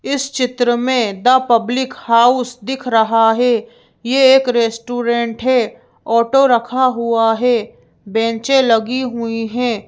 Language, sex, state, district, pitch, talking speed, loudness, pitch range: Hindi, female, Madhya Pradesh, Bhopal, 240 Hz, 130 wpm, -15 LUFS, 230-255 Hz